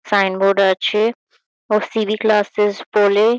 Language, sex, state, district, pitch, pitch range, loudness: Bengali, female, West Bengal, Kolkata, 210 Hz, 200-215 Hz, -17 LUFS